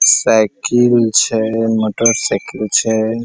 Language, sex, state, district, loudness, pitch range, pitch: Maithili, male, Bihar, Saharsa, -14 LUFS, 110-115 Hz, 115 Hz